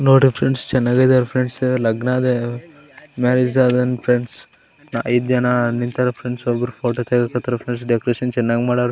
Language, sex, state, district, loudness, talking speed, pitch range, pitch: Kannada, male, Karnataka, Raichur, -18 LUFS, 150 wpm, 120-125 Hz, 125 Hz